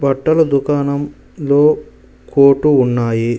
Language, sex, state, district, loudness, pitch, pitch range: Telugu, male, Telangana, Mahabubabad, -14 LUFS, 140 Hz, 135-145 Hz